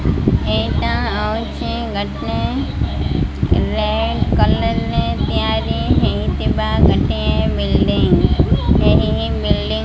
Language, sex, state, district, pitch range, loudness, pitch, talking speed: Odia, female, Odisha, Malkangiri, 70-75 Hz, -17 LUFS, 75 Hz, 80 wpm